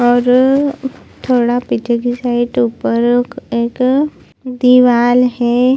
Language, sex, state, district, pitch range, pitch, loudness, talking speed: Hindi, female, Chhattisgarh, Bilaspur, 240-255 Hz, 245 Hz, -13 LUFS, 95 wpm